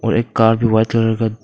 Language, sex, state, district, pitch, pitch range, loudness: Hindi, male, Arunachal Pradesh, Papum Pare, 115 Hz, 110-115 Hz, -15 LUFS